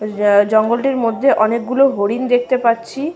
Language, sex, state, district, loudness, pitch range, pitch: Bengali, female, West Bengal, Malda, -15 LUFS, 215-260 Hz, 230 Hz